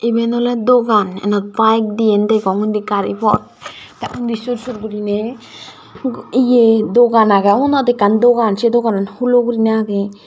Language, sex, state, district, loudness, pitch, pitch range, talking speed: Chakma, female, Tripura, Dhalai, -15 LUFS, 225 Hz, 210-240 Hz, 145 wpm